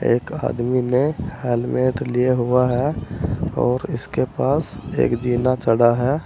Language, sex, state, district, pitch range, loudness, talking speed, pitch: Hindi, male, Uttar Pradesh, Saharanpur, 120-130 Hz, -20 LUFS, 135 wpm, 125 Hz